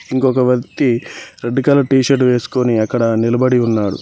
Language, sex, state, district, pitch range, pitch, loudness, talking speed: Telugu, male, Telangana, Mahabubabad, 115-130 Hz, 125 Hz, -15 LUFS, 135 wpm